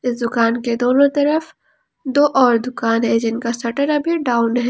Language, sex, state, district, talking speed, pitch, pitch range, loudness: Hindi, female, Jharkhand, Palamu, 180 wpm, 245 Hz, 235-280 Hz, -17 LUFS